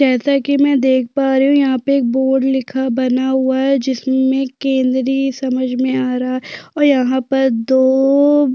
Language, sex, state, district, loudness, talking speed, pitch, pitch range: Hindi, female, Chhattisgarh, Sukma, -15 LUFS, 180 wpm, 265 Hz, 260-275 Hz